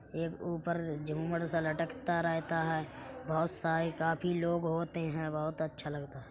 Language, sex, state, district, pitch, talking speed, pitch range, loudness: Hindi, female, Uttar Pradesh, Etah, 165 Hz, 160 wpm, 155-170 Hz, -35 LUFS